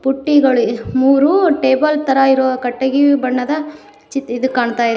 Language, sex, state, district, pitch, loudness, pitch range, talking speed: Kannada, female, Karnataka, Koppal, 265 Hz, -14 LUFS, 255-285 Hz, 120 wpm